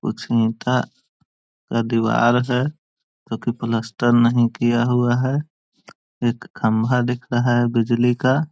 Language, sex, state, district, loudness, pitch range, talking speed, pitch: Hindi, male, Bihar, Jahanabad, -20 LUFS, 115-125 Hz, 135 wpm, 120 Hz